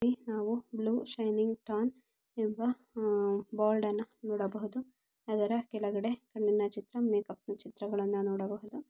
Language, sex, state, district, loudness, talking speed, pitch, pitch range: Kannada, female, Karnataka, Dakshina Kannada, -34 LUFS, 115 wpm, 215 Hz, 205-235 Hz